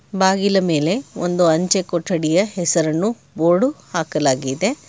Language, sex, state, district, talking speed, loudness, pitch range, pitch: Kannada, male, Karnataka, Bangalore, 100 wpm, -18 LUFS, 165-195 Hz, 175 Hz